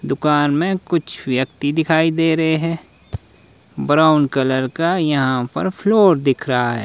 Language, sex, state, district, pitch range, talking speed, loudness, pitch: Hindi, male, Himachal Pradesh, Shimla, 135-165 Hz, 150 wpm, -17 LUFS, 150 Hz